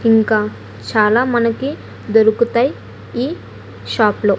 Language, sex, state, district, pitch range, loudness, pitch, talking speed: Telugu, female, Andhra Pradesh, Annamaya, 215-235 Hz, -16 LUFS, 225 Hz, 110 wpm